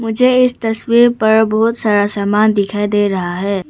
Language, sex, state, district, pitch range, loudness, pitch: Hindi, female, Arunachal Pradesh, Papum Pare, 205-230 Hz, -14 LUFS, 215 Hz